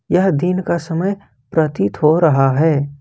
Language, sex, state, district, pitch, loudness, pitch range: Hindi, male, Jharkhand, Ranchi, 160 Hz, -16 LUFS, 145-180 Hz